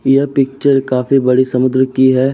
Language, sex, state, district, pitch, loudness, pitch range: Hindi, male, Uttar Pradesh, Jyotiba Phule Nagar, 130 Hz, -13 LUFS, 130-135 Hz